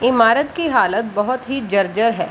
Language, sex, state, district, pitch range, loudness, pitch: Hindi, female, Bihar, Jahanabad, 220-260 Hz, -17 LUFS, 230 Hz